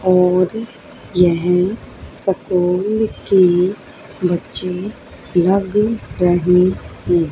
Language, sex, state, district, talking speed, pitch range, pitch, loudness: Hindi, female, Haryana, Charkhi Dadri, 65 wpm, 180-195 Hz, 180 Hz, -17 LUFS